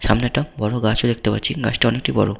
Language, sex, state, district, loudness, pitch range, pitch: Bengali, male, West Bengal, Paschim Medinipur, -20 LUFS, 110-120 Hz, 115 Hz